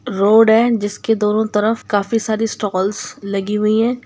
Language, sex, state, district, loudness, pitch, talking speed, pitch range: Hindi, male, Bihar, Sitamarhi, -16 LUFS, 215 Hz, 160 wpm, 205-225 Hz